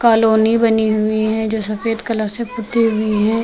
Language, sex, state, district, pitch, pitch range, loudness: Hindi, female, Uttar Pradesh, Lucknow, 220 Hz, 215-230 Hz, -16 LUFS